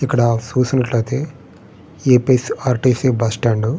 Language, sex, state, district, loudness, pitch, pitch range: Telugu, male, Andhra Pradesh, Srikakulam, -17 LUFS, 125 Hz, 115-130 Hz